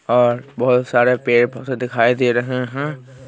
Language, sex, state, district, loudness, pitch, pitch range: Hindi, male, Bihar, Patna, -18 LUFS, 125 Hz, 120-130 Hz